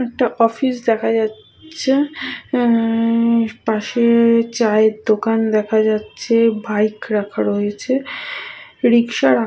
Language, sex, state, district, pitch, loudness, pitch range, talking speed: Bengali, female, West Bengal, Purulia, 230 Hz, -17 LUFS, 215-245 Hz, 100 wpm